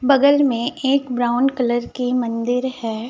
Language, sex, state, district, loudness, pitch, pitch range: Hindi, male, Chhattisgarh, Raipur, -19 LUFS, 250 Hz, 240-270 Hz